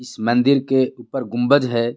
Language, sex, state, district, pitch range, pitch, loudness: Hindi, male, Jharkhand, Garhwa, 120-135 Hz, 125 Hz, -18 LUFS